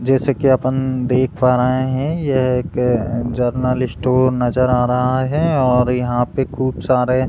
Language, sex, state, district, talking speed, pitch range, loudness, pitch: Hindi, male, Uttar Pradesh, Deoria, 175 wpm, 125-130 Hz, -17 LUFS, 130 Hz